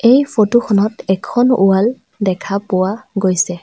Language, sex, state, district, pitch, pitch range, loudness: Assamese, female, Assam, Sonitpur, 205 Hz, 190-240 Hz, -15 LUFS